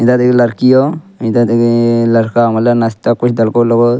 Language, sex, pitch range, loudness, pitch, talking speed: Angika, male, 115-120 Hz, -11 LUFS, 120 Hz, 195 wpm